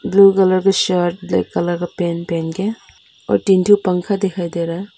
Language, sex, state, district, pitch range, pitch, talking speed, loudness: Hindi, female, Arunachal Pradesh, Papum Pare, 175-195 Hz, 185 Hz, 215 wpm, -17 LUFS